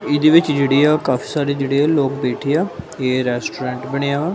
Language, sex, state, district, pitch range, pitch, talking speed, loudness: Punjabi, male, Punjab, Kapurthala, 130-150 Hz, 140 Hz, 205 wpm, -18 LUFS